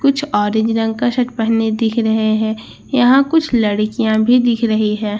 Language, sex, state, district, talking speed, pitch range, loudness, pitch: Hindi, female, Bihar, Katihar, 185 wpm, 220-245 Hz, -15 LUFS, 225 Hz